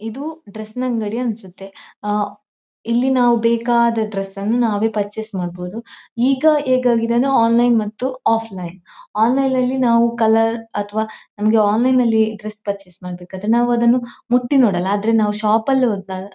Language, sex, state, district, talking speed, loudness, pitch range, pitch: Kannada, female, Karnataka, Dakshina Kannada, 145 wpm, -18 LUFS, 205-240 Hz, 225 Hz